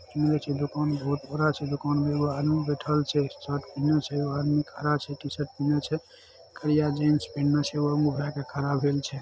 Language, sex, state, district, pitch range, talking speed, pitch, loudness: Maithili, male, Bihar, Saharsa, 145-150 Hz, 135 wpm, 145 Hz, -27 LUFS